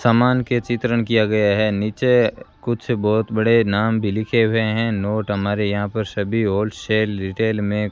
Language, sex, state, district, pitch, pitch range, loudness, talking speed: Hindi, male, Rajasthan, Bikaner, 110 Hz, 105-115 Hz, -19 LUFS, 180 wpm